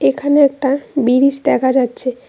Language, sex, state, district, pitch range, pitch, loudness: Bengali, female, West Bengal, Cooch Behar, 255-280 Hz, 265 Hz, -15 LUFS